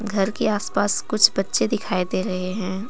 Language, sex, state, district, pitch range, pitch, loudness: Hindi, female, Jharkhand, Deoghar, 185-210 Hz, 200 Hz, -22 LUFS